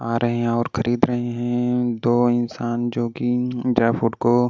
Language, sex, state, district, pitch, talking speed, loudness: Hindi, male, Delhi, New Delhi, 120 Hz, 200 wpm, -21 LUFS